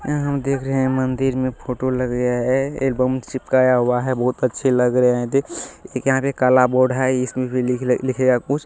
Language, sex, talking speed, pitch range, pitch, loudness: Maithili, male, 220 wpm, 125-135 Hz, 130 Hz, -19 LUFS